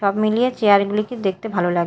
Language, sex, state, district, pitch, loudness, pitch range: Bengali, female, Odisha, Malkangiri, 205 Hz, -19 LUFS, 195-220 Hz